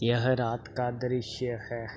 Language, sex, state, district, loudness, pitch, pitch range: Hindi, male, Uttar Pradesh, Hamirpur, -31 LUFS, 120 Hz, 115-125 Hz